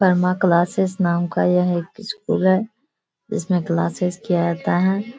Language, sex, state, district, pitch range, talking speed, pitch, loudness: Hindi, female, Bihar, Kishanganj, 175-190 Hz, 140 wpm, 180 Hz, -20 LUFS